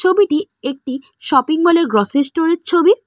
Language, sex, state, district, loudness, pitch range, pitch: Bengali, female, West Bengal, Cooch Behar, -16 LUFS, 270-350 Hz, 325 Hz